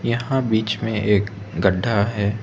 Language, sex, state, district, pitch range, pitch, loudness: Hindi, male, Arunachal Pradesh, Lower Dibang Valley, 100-115 Hz, 105 Hz, -21 LUFS